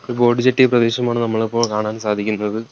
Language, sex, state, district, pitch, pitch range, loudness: Malayalam, male, Kerala, Kollam, 115 Hz, 110-120 Hz, -17 LUFS